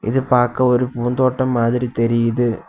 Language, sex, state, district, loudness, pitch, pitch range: Tamil, male, Tamil Nadu, Kanyakumari, -17 LUFS, 125 Hz, 115-125 Hz